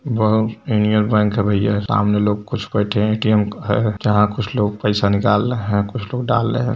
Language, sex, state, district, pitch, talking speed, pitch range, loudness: Hindi, male, Uttar Pradesh, Varanasi, 105 Hz, 220 wpm, 105-115 Hz, -18 LUFS